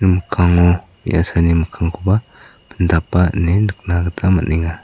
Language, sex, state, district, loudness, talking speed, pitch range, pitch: Garo, male, Meghalaya, South Garo Hills, -16 LUFS, 100 wpm, 85-95 Hz, 90 Hz